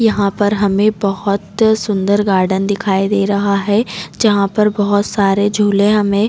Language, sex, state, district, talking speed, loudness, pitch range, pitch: Hindi, female, Chhattisgarh, Raigarh, 155 wpm, -14 LUFS, 200-210 Hz, 205 Hz